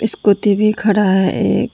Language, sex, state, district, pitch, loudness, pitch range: Hindi, female, Tripura, Dhalai, 205 Hz, -14 LUFS, 200-215 Hz